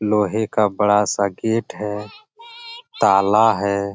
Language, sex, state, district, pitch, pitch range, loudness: Hindi, male, Bihar, Jamui, 105 Hz, 100-115 Hz, -18 LUFS